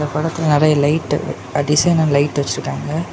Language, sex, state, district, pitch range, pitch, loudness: Tamil, male, Tamil Nadu, Kanyakumari, 145-155 Hz, 150 Hz, -17 LUFS